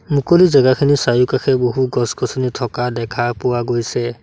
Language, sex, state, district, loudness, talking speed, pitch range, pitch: Assamese, male, Assam, Sonitpur, -16 LUFS, 130 wpm, 120-130 Hz, 125 Hz